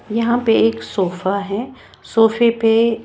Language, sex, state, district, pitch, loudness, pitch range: Hindi, female, Haryana, Jhajjar, 225 Hz, -17 LUFS, 190-230 Hz